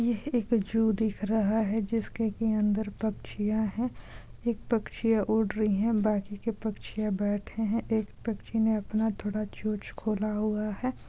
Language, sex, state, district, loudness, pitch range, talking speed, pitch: Hindi, female, Bihar, Supaul, -30 LUFS, 210-225 Hz, 160 wpm, 220 Hz